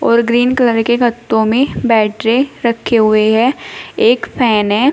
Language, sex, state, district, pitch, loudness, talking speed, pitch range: Hindi, female, Uttar Pradesh, Shamli, 235 Hz, -13 LUFS, 170 wpm, 220-250 Hz